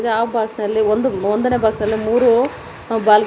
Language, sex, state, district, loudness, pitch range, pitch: Kannada, female, Karnataka, Koppal, -17 LUFS, 215-235 Hz, 220 Hz